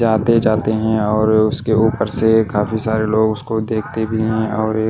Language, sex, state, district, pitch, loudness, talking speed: Hindi, male, Odisha, Malkangiri, 110 Hz, -17 LUFS, 185 wpm